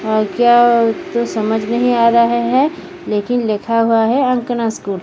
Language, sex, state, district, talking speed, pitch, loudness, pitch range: Hindi, female, Odisha, Sambalpur, 155 wpm, 235 Hz, -15 LUFS, 220-240 Hz